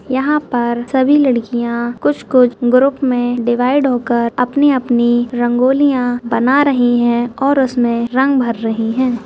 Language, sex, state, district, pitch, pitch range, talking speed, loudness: Hindi, female, Uttarakhand, Uttarkashi, 245 Hz, 240-265 Hz, 130 wpm, -14 LUFS